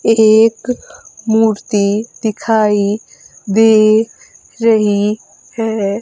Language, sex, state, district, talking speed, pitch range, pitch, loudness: Hindi, female, Madhya Pradesh, Umaria, 60 wpm, 205-225 Hz, 220 Hz, -13 LUFS